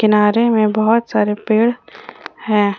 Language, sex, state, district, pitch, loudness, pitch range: Hindi, female, Jharkhand, Ranchi, 215 Hz, -15 LUFS, 210-225 Hz